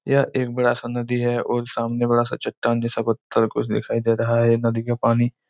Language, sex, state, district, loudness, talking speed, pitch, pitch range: Hindi, male, Chhattisgarh, Raigarh, -22 LUFS, 230 wpm, 120 Hz, 115-120 Hz